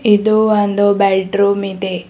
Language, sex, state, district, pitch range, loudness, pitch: Kannada, female, Karnataka, Bidar, 195-210 Hz, -14 LUFS, 200 Hz